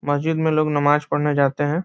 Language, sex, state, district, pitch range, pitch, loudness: Hindi, male, Bihar, Muzaffarpur, 145-155 Hz, 150 Hz, -20 LUFS